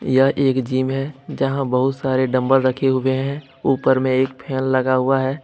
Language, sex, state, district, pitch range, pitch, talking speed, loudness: Hindi, male, Jharkhand, Deoghar, 130-135 Hz, 130 Hz, 200 wpm, -19 LUFS